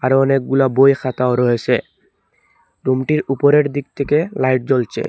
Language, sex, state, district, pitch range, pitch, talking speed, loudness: Bengali, male, Assam, Hailakandi, 130-140 Hz, 135 Hz, 130 wpm, -16 LUFS